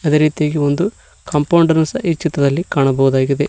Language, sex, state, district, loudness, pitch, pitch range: Kannada, male, Karnataka, Koppal, -16 LUFS, 150 Hz, 140-165 Hz